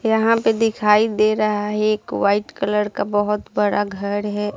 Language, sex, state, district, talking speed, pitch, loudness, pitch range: Hindi, female, Bihar, Saharsa, 195 wpm, 210 Hz, -19 LUFS, 205-215 Hz